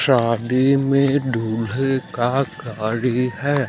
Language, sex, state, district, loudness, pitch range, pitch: Hindi, male, Madhya Pradesh, Umaria, -20 LUFS, 115-135 Hz, 125 Hz